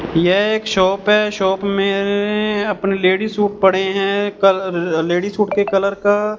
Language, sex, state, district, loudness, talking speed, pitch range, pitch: Hindi, male, Punjab, Fazilka, -17 LUFS, 170 wpm, 190-205 Hz, 200 Hz